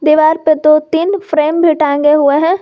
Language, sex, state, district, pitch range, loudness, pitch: Hindi, female, Jharkhand, Garhwa, 305-325 Hz, -11 LUFS, 310 Hz